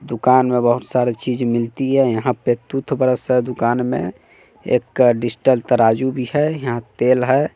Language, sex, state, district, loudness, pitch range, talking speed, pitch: Hindi, male, Bihar, West Champaran, -18 LUFS, 120-130 Hz, 175 wpm, 125 Hz